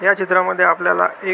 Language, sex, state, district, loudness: Marathi, male, Maharashtra, Solapur, -16 LUFS